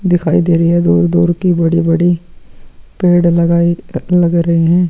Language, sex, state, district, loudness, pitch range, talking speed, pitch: Hindi, male, Chhattisgarh, Sukma, -12 LUFS, 165-175 Hz, 195 wpm, 170 Hz